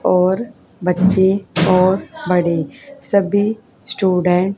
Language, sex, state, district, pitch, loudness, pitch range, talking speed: Hindi, female, Haryana, Charkhi Dadri, 190 Hz, -16 LUFS, 180-205 Hz, 90 wpm